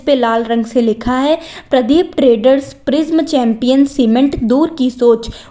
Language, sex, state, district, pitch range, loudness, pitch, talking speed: Hindi, female, Uttar Pradesh, Lalitpur, 240-295 Hz, -13 LUFS, 260 Hz, 150 wpm